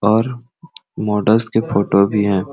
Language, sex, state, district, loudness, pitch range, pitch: Sadri, male, Chhattisgarh, Jashpur, -17 LUFS, 100-120 Hz, 110 Hz